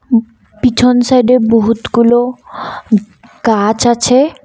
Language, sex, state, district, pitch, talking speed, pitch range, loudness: Bengali, female, Assam, Kamrup Metropolitan, 235 Hz, 80 wpm, 225-250 Hz, -11 LUFS